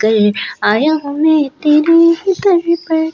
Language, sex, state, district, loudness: Hindi, female, Delhi, New Delhi, -13 LUFS